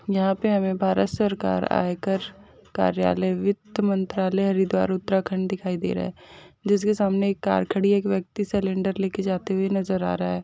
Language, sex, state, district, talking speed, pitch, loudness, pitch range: Hindi, female, Uttarakhand, Uttarkashi, 180 wpm, 190 Hz, -24 LUFS, 185-200 Hz